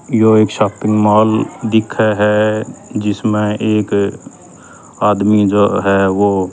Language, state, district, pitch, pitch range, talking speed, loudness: Haryanvi, Haryana, Rohtak, 105 Hz, 100-110 Hz, 110 wpm, -14 LUFS